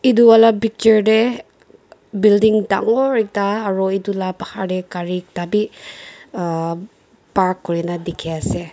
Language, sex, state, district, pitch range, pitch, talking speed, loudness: Nagamese, female, Nagaland, Dimapur, 175-220 Hz, 195 Hz, 130 wpm, -17 LUFS